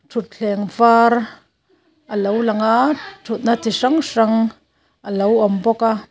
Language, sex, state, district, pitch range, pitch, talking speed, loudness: Mizo, female, Mizoram, Aizawl, 215-240 Hz, 225 Hz, 135 wpm, -17 LUFS